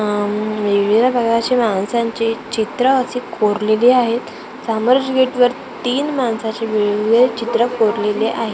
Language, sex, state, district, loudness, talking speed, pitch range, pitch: Marathi, female, Maharashtra, Gondia, -17 LUFS, 120 wpm, 215-245 Hz, 230 Hz